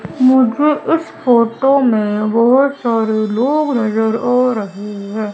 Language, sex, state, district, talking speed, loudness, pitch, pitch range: Hindi, female, Madhya Pradesh, Umaria, 125 wpm, -14 LUFS, 235 Hz, 215-265 Hz